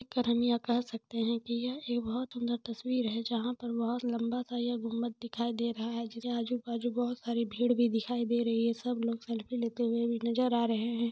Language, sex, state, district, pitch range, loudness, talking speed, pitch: Hindi, female, Jharkhand, Jamtara, 230-240 Hz, -33 LUFS, 245 wpm, 235 Hz